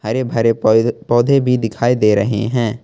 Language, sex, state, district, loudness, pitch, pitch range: Hindi, male, Jharkhand, Ranchi, -15 LUFS, 115 Hz, 110-125 Hz